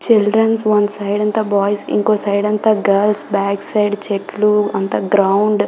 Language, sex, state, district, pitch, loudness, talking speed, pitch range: Telugu, female, Telangana, Karimnagar, 205 Hz, -15 LUFS, 160 wpm, 200-210 Hz